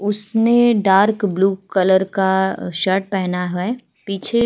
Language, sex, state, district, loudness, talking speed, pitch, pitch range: Hindi, female, Uttar Pradesh, Jalaun, -17 LUFS, 150 wpm, 195 Hz, 190-215 Hz